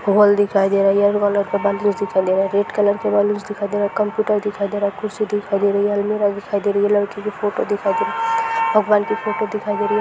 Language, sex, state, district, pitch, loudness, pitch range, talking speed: Hindi, female, Bihar, Sitamarhi, 205 Hz, -19 LUFS, 200-210 Hz, 305 wpm